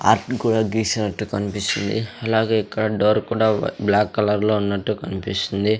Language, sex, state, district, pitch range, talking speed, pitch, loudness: Telugu, male, Andhra Pradesh, Sri Satya Sai, 100-110 Hz, 135 wpm, 105 Hz, -21 LUFS